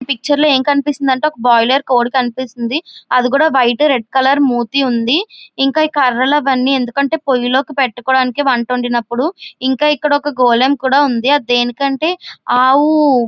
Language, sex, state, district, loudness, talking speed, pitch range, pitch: Telugu, female, Andhra Pradesh, Visakhapatnam, -14 LUFS, 175 wpm, 250-290 Hz, 265 Hz